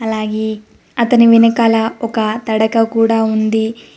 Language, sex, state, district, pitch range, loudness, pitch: Telugu, female, Telangana, Mahabubabad, 220-230 Hz, -14 LUFS, 225 Hz